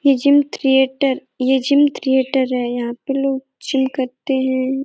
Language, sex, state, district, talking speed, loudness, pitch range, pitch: Hindi, female, Uttar Pradesh, Etah, 160 wpm, -18 LUFS, 260-275 Hz, 265 Hz